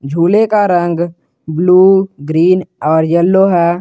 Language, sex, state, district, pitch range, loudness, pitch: Hindi, male, Jharkhand, Garhwa, 165-190 Hz, -11 LUFS, 175 Hz